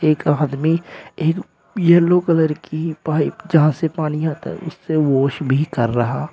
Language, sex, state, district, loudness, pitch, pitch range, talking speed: Hindi, male, Uttar Pradesh, Shamli, -18 LUFS, 155 Hz, 150-165 Hz, 160 wpm